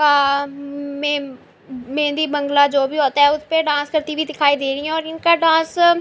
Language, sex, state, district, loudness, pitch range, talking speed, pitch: Urdu, female, Andhra Pradesh, Anantapur, -18 LUFS, 285-310 Hz, 200 wpm, 290 Hz